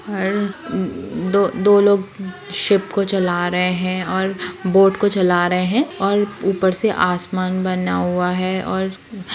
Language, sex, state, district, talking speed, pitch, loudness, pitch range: Hindi, female, Bihar, Sitamarhi, 145 wpm, 190 Hz, -18 LUFS, 180-200 Hz